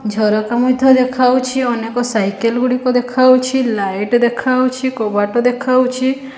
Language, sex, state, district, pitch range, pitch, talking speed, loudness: Odia, female, Odisha, Khordha, 230-255 Hz, 250 Hz, 140 wpm, -15 LUFS